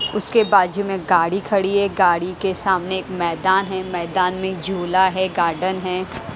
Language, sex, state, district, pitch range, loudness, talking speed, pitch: Hindi, female, Haryana, Jhajjar, 180-195 Hz, -19 LUFS, 170 wpm, 185 Hz